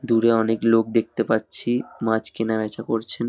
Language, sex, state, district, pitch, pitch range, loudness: Bengali, male, West Bengal, Dakshin Dinajpur, 115 Hz, 110-115 Hz, -22 LUFS